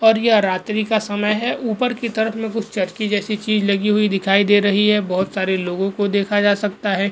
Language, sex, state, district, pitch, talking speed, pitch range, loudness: Hindi, male, Goa, North and South Goa, 205 Hz, 235 wpm, 200-220 Hz, -18 LUFS